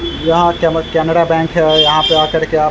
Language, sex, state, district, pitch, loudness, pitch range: Hindi, male, Bihar, Vaishali, 160 Hz, -12 LUFS, 155-165 Hz